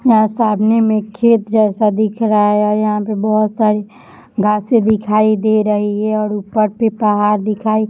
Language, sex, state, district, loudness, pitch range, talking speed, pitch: Hindi, female, Jharkhand, Jamtara, -14 LUFS, 210-220 Hz, 175 wpm, 215 Hz